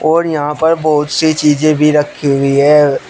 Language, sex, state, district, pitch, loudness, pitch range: Hindi, male, Uttar Pradesh, Shamli, 150 Hz, -12 LUFS, 145-155 Hz